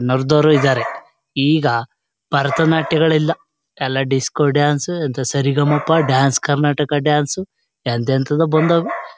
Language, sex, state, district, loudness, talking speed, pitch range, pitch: Kannada, male, Karnataka, Shimoga, -17 LUFS, 100 wpm, 135-155 Hz, 145 Hz